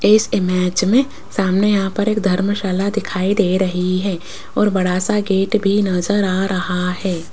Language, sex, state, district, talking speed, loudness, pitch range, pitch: Hindi, female, Rajasthan, Jaipur, 180 wpm, -17 LUFS, 185-205 Hz, 195 Hz